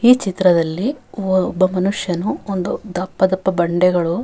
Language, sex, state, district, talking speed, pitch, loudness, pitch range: Kannada, female, Karnataka, Raichur, 125 wpm, 185 Hz, -18 LUFS, 180-195 Hz